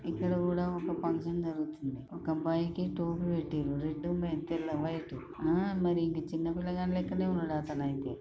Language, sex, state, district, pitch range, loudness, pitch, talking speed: Telugu, male, Andhra Pradesh, Srikakulam, 160-175 Hz, -34 LUFS, 165 Hz, 155 wpm